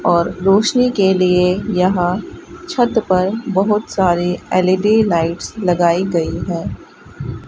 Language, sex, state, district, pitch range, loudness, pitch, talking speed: Hindi, female, Rajasthan, Bikaner, 180-215 Hz, -16 LUFS, 185 Hz, 110 wpm